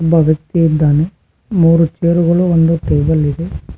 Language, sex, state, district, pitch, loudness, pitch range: Kannada, male, Karnataka, Koppal, 165 Hz, -13 LUFS, 155-170 Hz